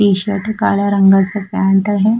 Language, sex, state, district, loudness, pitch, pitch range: Marathi, female, Maharashtra, Sindhudurg, -14 LUFS, 200 Hz, 195-205 Hz